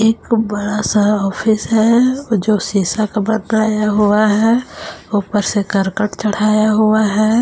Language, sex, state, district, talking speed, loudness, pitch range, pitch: Hindi, female, Jharkhand, Palamu, 140 wpm, -15 LUFS, 210-220 Hz, 215 Hz